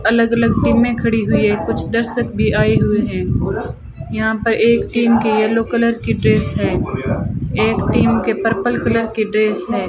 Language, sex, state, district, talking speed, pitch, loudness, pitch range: Hindi, female, Rajasthan, Bikaner, 180 wpm, 230 Hz, -16 LUFS, 220-235 Hz